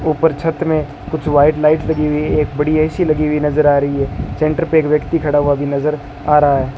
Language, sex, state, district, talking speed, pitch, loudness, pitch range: Hindi, male, Rajasthan, Bikaner, 255 wpm, 150 Hz, -15 LUFS, 145-155 Hz